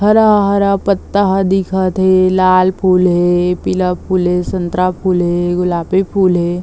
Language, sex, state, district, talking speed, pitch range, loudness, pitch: Chhattisgarhi, female, Chhattisgarh, Bilaspur, 155 wpm, 180-190 Hz, -13 LUFS, 185 Hz